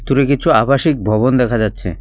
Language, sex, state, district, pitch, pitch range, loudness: Bengali, male, West Bengal, Cooch Behar, 125 Hz, 110-140 Hz, -14 LUFS